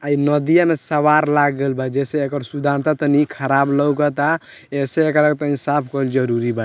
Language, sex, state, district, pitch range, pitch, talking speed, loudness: Bhojpuri, male, Bihar, Muzaffarpur, 140-150 Hz, 145 Hz, 190 wpm, -18 LUFS